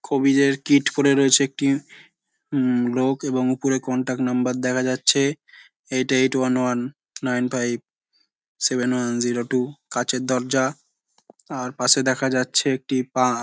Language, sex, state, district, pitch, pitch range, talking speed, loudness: Bengali, male, West Bengal, Jhargram, 130 Hz, 125-135 Hz, 150 wpm, -21 LUFS